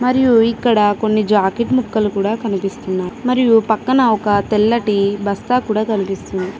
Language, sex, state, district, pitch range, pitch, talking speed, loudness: Telugu, female, Telangana, Mahabubabad, 200-235 Hz, 215 Hz, 125 wpm, -16 LUFS